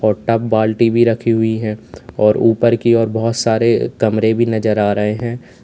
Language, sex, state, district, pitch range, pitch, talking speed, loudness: Hindi, male, Uttar Pradesh, Lalitpur, 110-115 Hz, 115 Hz, 200 wpm, -15 LUFS